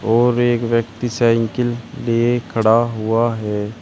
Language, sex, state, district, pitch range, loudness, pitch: Hindi, male, Uttar Pradesh, Shamli, 115-120 Hz, -18 LUFS, 115 Hz